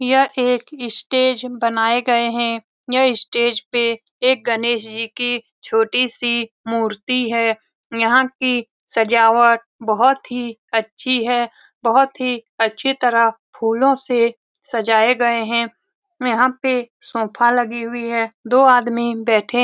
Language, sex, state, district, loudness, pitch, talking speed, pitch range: Hindi, female, Bihar, Lakhisarai, -17 LUFS, 235 Hz, 130 wpm, 230-250 Hz